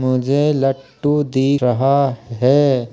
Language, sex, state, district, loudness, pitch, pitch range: Hindi, male, Uttar Pradesh, Jalaun, -16 LUFS, 135 Hz, 130-140 Hz